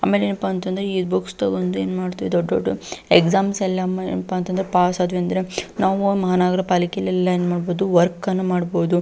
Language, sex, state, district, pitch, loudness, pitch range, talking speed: Kannada, female, Karnataka, Belgaum, 180 Hz, -20 LUFS, 175-185 Hz, 165 wpm